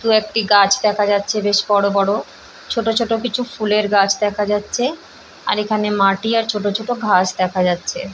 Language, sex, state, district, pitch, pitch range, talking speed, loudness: Bengali, female, West Bengal, Purulia, 210 Hz, 200-225 Hz, 175 wpm, -17 LUFS